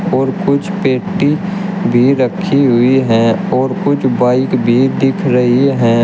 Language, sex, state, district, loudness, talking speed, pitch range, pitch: Hindi, male, Uttar Pradesh, Shamli, -13 LUFS, 140 wpm, 125-140 Hz, 130 Hz